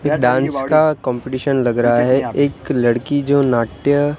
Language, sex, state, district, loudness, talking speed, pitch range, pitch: Hindi, male, Gujarat, Gandhinagar, -16 LUFS, 155 wpm, 125-145 Hz, 135 Hz